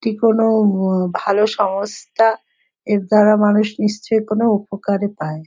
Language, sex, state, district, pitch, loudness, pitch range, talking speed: Bengali, female, West Bengal, Jhargram, 210 Hz, -17 LUFS, 200-220 Hz, 145 wpm